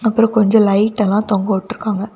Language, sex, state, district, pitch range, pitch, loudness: Tamil, female, Tamil Nadu, Kanyakumari, 200-220 Hz, 210 Hz, -15 LUFS